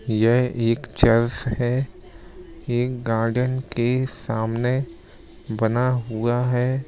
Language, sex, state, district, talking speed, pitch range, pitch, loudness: Hindi, male, Bihar, Lakhisarai, 95 wpm, 115-125 Hz, 120 Hz, -22 LUFS